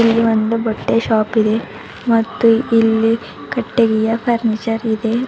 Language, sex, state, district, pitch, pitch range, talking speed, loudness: Kannada, female, Karnataka, Bidar, 225 Hz, 220-230 Hz, 100 wpm, -16 LUFS